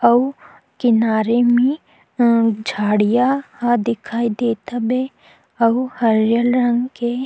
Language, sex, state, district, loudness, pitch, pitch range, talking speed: Chhattisgarhi, female, Chhattisgarh, Sukma, -18 LUFS, 240 Hz, 230-250 Hz, 100 wpm